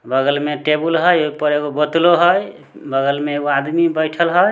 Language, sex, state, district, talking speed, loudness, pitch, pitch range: Maithili, male, Bihar, Samastipur, 185 wpm, -16 LUFS, 150 Hz, 145-170 Hz